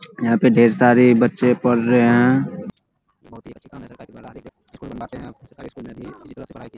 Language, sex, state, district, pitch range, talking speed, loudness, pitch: Hindi, male, Bihar, Saharsa, 120-125 Hz, 80 wpm, -16 LUFS, 120 Hz